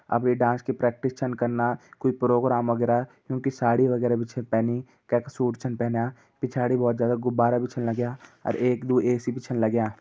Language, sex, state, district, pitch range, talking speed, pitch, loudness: Garhwali, male, Uttarakhand, Uttarkashi, 120-125 Hz, 210 wpm, 120 Hz, -25 LUFS